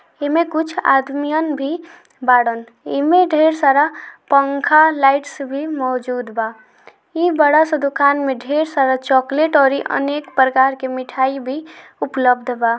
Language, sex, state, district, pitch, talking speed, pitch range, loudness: Hindi, female, Bihar, Gopalganj, 280 Hz, 150 wpm, 260-310 Hz, -16 LUFS